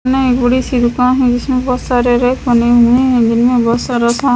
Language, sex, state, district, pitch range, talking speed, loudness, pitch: Hindi, female, Himachal Pradesh, Shimla, 240-255 Hz, 235 wpm, -12 LUFS, 245 Hz